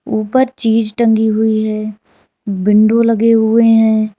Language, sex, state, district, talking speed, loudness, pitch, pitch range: Hindi, female, Uttar Pradesh, Lalitpur, 130 wpm, -12 LUFS, 220 Hz, 215-230 Hz